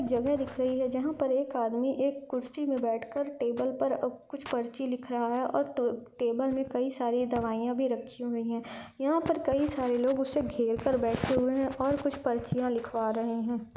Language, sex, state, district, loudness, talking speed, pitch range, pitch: Hindi, female, Bihar, Lakhisarai, -30 LUFS, 215 wpm, 235-270 Hz, 255 Hz